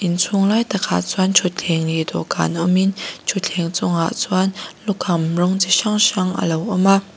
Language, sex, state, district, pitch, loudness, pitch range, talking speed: Mizo, female, Mizoram, Aizawl, 185 Hz, -18 LUFS, 170-195 Hz, 160 wpm